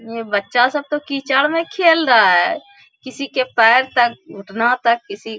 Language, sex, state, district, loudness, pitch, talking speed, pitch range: Hindi, female, Bihar, Bhagalpur, -16 LUFS, 250 Hz, 190 wpm, 230-280 Hz